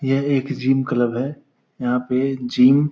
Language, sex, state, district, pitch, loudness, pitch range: Hindi, male, Bihar, Purnia, 130 Hz, -20 LUFS, 125-135 Hz